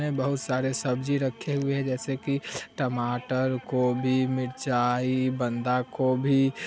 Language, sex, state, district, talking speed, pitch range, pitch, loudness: Hindi, male, Bihar, Vaishali, 125 wpm, 125-135 Hz, 130 Hz, -27 LUFS